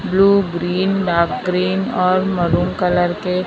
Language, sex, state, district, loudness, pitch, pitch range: Hindi, female, Maharashtra, Mumbai Suburban, -17 LUFS, 180 Hz, 175-190 Hz